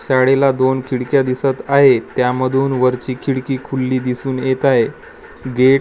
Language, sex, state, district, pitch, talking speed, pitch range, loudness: Marathi, male, Maharashtra, Gondia, 130 Hz, 145 wpm, 130-135 Hz, -16 LUFS